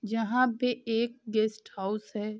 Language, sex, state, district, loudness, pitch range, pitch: Hindi, female, Bihar, Saharsa, -30 LUFS, 215-235 Hz, 225 Hz